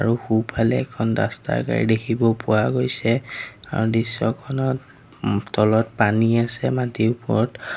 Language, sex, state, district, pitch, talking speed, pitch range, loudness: Assamese, male, Assam, Sonitpur, 115 Hz, 125 wpm, 110-125 Hz, -21 LUFS